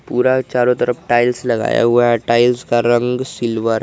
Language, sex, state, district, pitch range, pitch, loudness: Hindi, male, Jharkhand, Garhwa, 120-125 Hz, 120 Hz, -15 LUFS